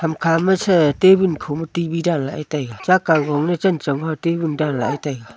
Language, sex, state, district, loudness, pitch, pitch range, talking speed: Wancho, female, Arunachal Pradesh, Longding, -18 LUFS, 160 Hz, 145-170 Hz, 225 wpm